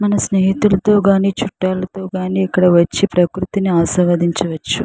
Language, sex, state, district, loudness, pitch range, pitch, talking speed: Telugu, female, Andhra Pradesh, Chittoor, -15 LUFS, 175-195 Hz, 185 Hz, 110 wpm